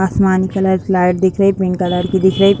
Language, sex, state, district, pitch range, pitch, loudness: Hindi, female, Uttar Pradesh, Deoria, 185-195 Hz, 190 Hz, -14 LUFS